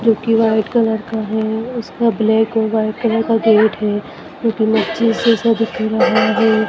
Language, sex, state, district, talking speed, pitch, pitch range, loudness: Hindi, female, Madhya Pradesh, Dhar, 180 wpm, 225 Hz, 220-230 Hz, -16 LUFS